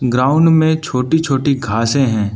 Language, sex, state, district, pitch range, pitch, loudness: Hindi, male, Arunachal Pradesh, Lower Dibang Valley, 125-160 Hz, 135 Hz, -14 LUFS